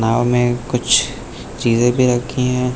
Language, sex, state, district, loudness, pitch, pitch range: Hindi, male, Uttar Pradesh, Lucknow, -16 LUFS, 125 Hz, 120-125 Hz